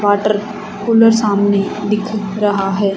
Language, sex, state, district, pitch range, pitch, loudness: Hindi, female, Haryana, Charkhi Dadri, 200-210 Hz, 205 Hz, -15 LUFS